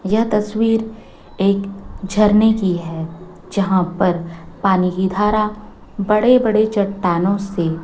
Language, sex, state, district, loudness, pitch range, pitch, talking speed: Hindi, female, Chhattisgarh, Raipur, -17 LUFS, 180-215 Hz, 200 Hz, 115 wpm